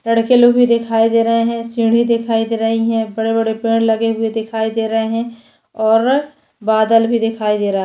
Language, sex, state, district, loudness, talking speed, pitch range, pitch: Hindi, female, Chhattisgarh, Sukma, -15 LUFS, 205 wpm, 225-230 Hz, 225 Hz